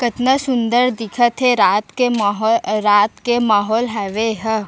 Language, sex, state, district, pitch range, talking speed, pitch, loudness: Chhattisgarhi, female, Chhattisgarh, Raigarh, 210-245 Hz, 165 wpm, 225 Hz, -16 LUFS